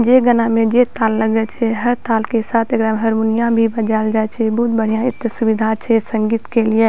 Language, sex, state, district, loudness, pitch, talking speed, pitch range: Maithili, female, Bihar, Purnia, -16 LUFS, 225 Hz, 225 wpm, 220-230 Hz